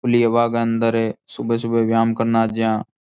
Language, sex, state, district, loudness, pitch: Rajasthani, male, Rajasthan, Churu, -19 LUFS, 115 Hz